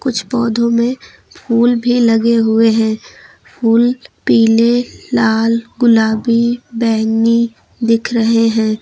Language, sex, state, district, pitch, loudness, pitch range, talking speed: Hindi, female, Uttar Pradesh, Lucknow, 230 Hz, -13 LUFS, 225-240 Hz, 110 wpm